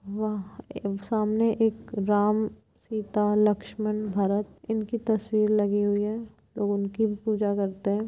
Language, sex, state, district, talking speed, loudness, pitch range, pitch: Hindi, female, Uttar Pradesh, Varanasi, 135 wpm, -27 LUFS, 205-220 Hz, 210 Hz